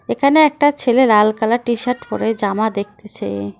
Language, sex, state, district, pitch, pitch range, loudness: Bengali, female, West Bengal, Cooch Behar, 225 Hz, 210-255 Hz, -16 LUFS